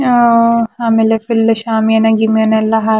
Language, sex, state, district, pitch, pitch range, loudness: Kannada, female, Karnataka, Shimoga, 225 Hz, 220-230 Hz, -12 LUFS